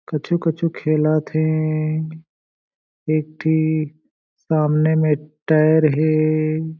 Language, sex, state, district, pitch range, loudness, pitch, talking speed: Chhattisgarhi, male, Chhattisgarh, Jashpur, 155-160 Hz, -19 LUFS, 155 Hz, 80 wpm